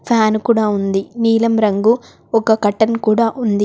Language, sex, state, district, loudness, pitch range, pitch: Telugu, female, Telangana, Komaram Bheem, -15 LUFS, 210-230 Hz, 220 Hz